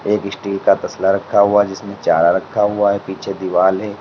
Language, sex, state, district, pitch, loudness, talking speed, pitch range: Hindi, male, Uttar Pradesh, Lalitpur, 100 Hz, -16 LUFS, 210 wpm, 95-105 Hz